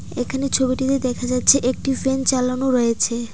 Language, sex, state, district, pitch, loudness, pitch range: Bengali, female, Tripura, Dhalai, 255 Hz, -19 LUFS, 250-265 Hz